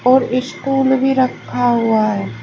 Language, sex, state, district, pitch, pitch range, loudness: Hindi, female, Uttar Pradesh, Shamli, 250 Hz, 230-265 Hz, -16 LUFS